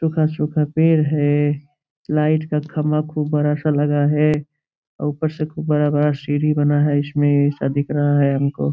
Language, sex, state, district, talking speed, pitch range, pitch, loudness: Hindi, male, Uttar Pradesh, Gorakhpur, 180 wpm, 145-150 Hz, 150 Hz, -19 LUFS